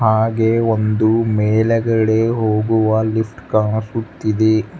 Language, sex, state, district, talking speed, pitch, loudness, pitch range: Kannada, male, Karnataka, Bangalore, 75 wpm, 110 Hz, -16 LUFS, 110-115 Hz